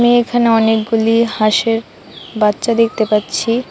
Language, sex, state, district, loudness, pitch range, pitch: Bengali, female, Tripura, West Tripura, -14 LUFS, 220-235 Hz, 225 Hz